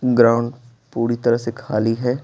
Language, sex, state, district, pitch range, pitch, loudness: Hindi, male, Bihar, Patna, 115-125 Hz, 120 Hz, -19 LUFS